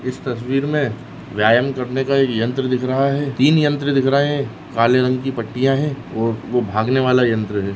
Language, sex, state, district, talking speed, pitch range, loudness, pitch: Hindi, male, Maharashtra, Chandrapur, 210 wpm, 115-140 Hz, -18 LUFS, 130 Hz